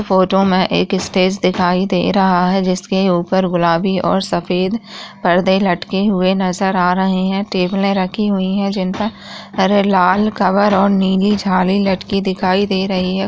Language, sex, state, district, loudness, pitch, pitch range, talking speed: Hindi, female, Rajasthan, Churu, -15 LUFS, 190 Hz, 185-195 Hz, 165 wpm